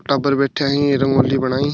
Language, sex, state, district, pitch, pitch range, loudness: Marwari, male, Rajasthan, Churu, 140 Hz, 135-140 Hz, -17 LUFS